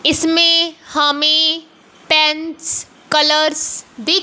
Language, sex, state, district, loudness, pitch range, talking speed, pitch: Hindi, female, Punjab, Fazilka, -14 LUFS, 305-325 Hz, 70 wpm, 310 Hz